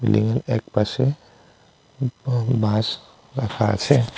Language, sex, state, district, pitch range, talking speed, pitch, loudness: Bengali, male, West Bengal, Alipurduar, 110-130 Hz, 85 wpm, 115 Hz, -22 LUFS